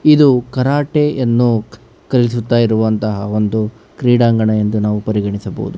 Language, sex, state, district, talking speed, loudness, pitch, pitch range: Kannada, male, Karnataka, Bangalore, 95 wpm, -15 LUFS, 115 Hz, 105-125 Hz